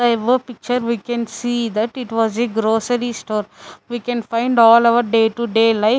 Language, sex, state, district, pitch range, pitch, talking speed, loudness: English, female, Chandigarh, Chandigarh, 225-240 Hz, 235 Hz, 210 wpm, -17 LUFS